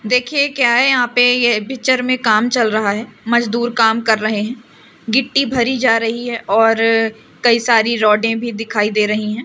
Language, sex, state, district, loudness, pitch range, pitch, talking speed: Hindi, female, Madhya Pradesh, Umaria, -15 LUFS, 220-245 Hz, 230 Hz, 195 wpm